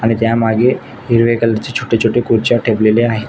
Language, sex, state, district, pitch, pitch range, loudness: Marathi, male, Maharashtra, Nagpur, 115 Hz, 115-120 Hz, -14 LUFS